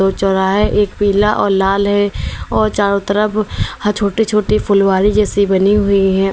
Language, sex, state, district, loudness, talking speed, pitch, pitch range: Hindi, female, Uttar Pradesh, Lalitpur, -14 LUFS, 150 wpm, 200 Hz, 195-210 Hz